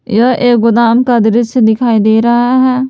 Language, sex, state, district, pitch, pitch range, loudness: Hindi, female, Jharkhand, Palamu, 235 Hz, 230-245 Hz, -10 LUFS